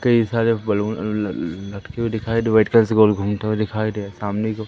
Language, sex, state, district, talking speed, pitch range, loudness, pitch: Hindi, male, Madhya Pradesh, Umaria, 245 wpm, 105-115 Hz, -20 LUFS, 110 Hz